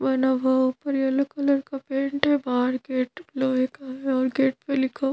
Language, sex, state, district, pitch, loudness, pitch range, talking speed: Hindi, female, Madhya Pradesh, Bhopal, 265 Hz, -24 LUFS, 260-275 Hz, 220 wpm